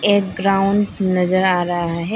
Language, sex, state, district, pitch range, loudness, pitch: Hindi, female, Arunachal Pradesh, Lower Dibang Valley, 180-200 Hz, -18 LUFS, 190 Hz